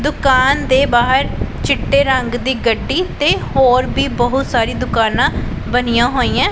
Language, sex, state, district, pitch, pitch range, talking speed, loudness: Punjabi, female, Punjab, Pathankot, 255 Hz, 245-270 Hz, 140 wpm, -15 LUFS